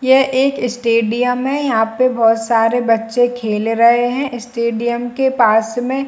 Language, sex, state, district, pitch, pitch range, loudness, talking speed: Hindi, female, Chhattisgarh, Bilaspur, 240 Hz, 225-255 Hz, -15 LUFS, 170 wpm